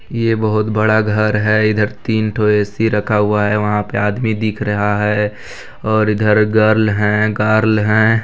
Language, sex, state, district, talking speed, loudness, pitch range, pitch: Hindi, male, Chhattisgarh, Balrampur, 175 wpm, -15 LUFS, 105-110 Hz, 110 Hz